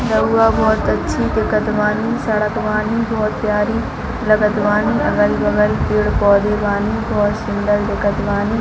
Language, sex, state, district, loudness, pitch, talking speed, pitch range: Hindi, female, Chhattisgarh, Bilaspur, -17 LUFS, 215 Hz, 125 wpm, 210-220 Hz